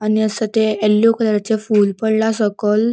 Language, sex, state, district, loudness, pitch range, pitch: Konkani, female, Goa, North and South Goa, -16 LUFS, 210-220 Hz, 215 Hz